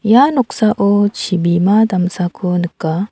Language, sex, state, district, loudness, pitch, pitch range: Garo, female, Meghalaya, South Garo Hills, -14 LUFS, 200 Hz, 180-215 Hz